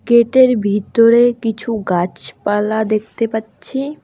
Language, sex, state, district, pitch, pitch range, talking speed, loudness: Bengali, female, West Bengal, Alipurduar, 220 Hz, 205-235 Hz, 90 wpm, -16 LUFS